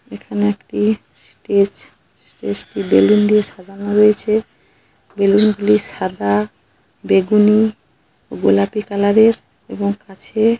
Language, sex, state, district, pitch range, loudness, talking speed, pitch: Bengali, female, West Bengal, Paschim Medinipur, 145-210 Hz, -16 LUFS, 105 wpm, 200 Hz